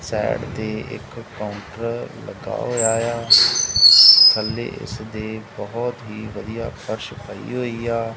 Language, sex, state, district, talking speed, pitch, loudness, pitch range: Punjabi, male, Punjab, Kapurthala, 130 wpm, 115 Hz, -15 LUFS, 110-115 Hz